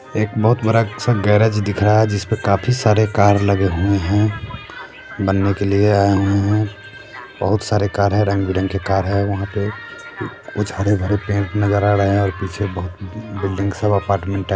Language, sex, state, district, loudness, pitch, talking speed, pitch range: Hindi, male, Bihar, Sitamarhi, -18 LUFS, 100 Hz, 195 wpm, 100-105 Hz